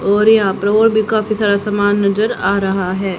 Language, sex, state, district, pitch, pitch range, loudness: Hindi, female, Haryana, Rohtak, 205 Hz, 195-215 Hz, -14 LUFS